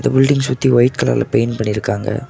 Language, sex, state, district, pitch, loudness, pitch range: Tamil, male, Tamil Nadu, Kanyakumari, 120 Hz, -16 LUFS, 105-135 Hz